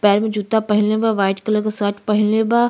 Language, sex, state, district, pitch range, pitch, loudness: Bhojpuri, female, Uttar Pradesh, Ghazipur, 205-220 Hz, 210 Hz, -18 LUFS